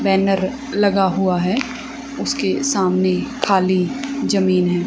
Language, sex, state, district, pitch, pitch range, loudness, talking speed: Hindi, female, Haryana, Charkhi Dadri, 195 Hz, 185-260 Hz, -18 LUFS, 110 wpm